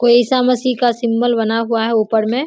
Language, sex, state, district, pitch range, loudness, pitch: Hindi, female, Bihar, Samastipur, 225-250 Hz, -15 LUFS, 240 Hz